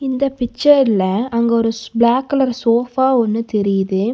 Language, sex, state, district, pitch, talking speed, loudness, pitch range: Tamil, female, Tamil Nadu, Nilgiris, 235 Hz, 115 wpm, -16 LUFS, 225-260 Hz